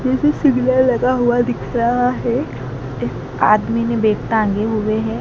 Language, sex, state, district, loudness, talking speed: Hindi, male, Madhya Pradesh, Dhar, -17 LUFS, 160 wpm